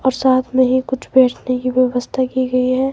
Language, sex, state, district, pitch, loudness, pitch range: Hindi, male, Himachal Pradesh, Shimla, 255 Hz, -16 LUFS, 255-260 Hz